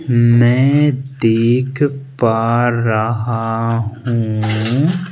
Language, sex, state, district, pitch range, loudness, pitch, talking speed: Hindi, male, Madhya Pradesh, Bhopal, 115-135 Hz, -15 LUFS, 120 Hz, 60 wpm